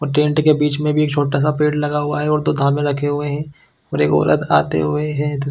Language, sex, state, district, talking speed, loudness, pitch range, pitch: Hindi, male, Chhattisgarh, Bilaspur, 260 wpm, -17 LUFS, 140-150 Hz, 145 Hz